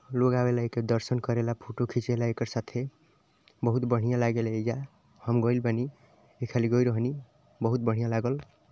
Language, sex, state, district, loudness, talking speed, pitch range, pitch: Bhojpuri, male, Uttar Pradesh, Ghazipur, -29 LUFS, 160 wpm, 115-125 Hz, 120 Hz